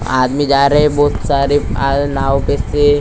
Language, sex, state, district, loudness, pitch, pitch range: Hindi, male, Maharashtra, Gondia, -14 LUFS, 140 Hz, 135-145 Hz